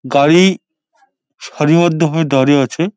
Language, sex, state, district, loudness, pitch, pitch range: Bengali, male, West Bengal, Dakshin Dinajpur, -12 LUFS, 165 Hz, 145-175 Hz